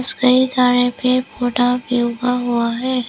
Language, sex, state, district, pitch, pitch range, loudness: Hindi, female, Arunachal Pradesh, Lower Dibang Valley, 250 Hz, 245-255 Hz, -16 LUFS